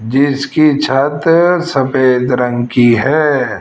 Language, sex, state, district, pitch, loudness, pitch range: Hindi, female, Rajasthan, Jaipur, 135 Hz, -12 LUFS, 125-150 Hz